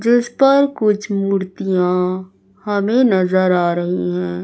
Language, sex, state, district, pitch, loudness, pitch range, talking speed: Hindi, female, Chhattisgarh, Raipur, 195 Hz, -16 LUFS, 180-215 Hz, 120 wpm